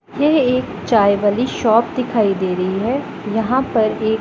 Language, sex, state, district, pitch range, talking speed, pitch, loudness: Hindi, female, Punjab, Pathankot, 210-255 Hz, 170 wpm, 225 Hz, -17 LUFS